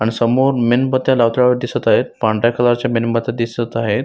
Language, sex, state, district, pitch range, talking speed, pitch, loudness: Marathi, male, Maharashtra, Solapur, 115-125 Hz, 180 wpm, 120 Hz, -16 LUFS